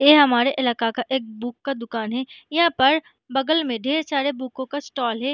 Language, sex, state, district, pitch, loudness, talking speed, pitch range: Hindi, female, Jharkhand, Sahebganj, 265 Hz, -22 LUFS, 215 wpm, 240-290 Hz